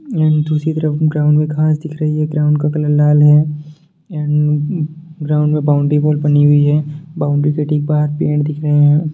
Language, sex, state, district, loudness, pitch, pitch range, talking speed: Hindi, male, Bihar, Darbhanga, -14 LUFS, 150 Hz, 150-155 Hz, 185 wpm